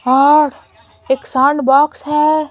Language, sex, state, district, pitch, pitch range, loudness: Hindi, female, Bihar, Patna, 285 Hz, 270-300 Hz, -13 LUFS